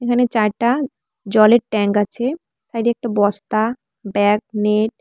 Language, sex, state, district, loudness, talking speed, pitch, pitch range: Bengali, female, West Bengal, Cooch Behar, -18 LUFS, 130 wpm, 220 Hz, 210-240 Hz